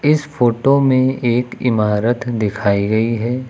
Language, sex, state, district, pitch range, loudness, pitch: Hindi, female, Uttar Pradesh, Lucknow, 110-130 Hz, -16 LUFS, 120 Hz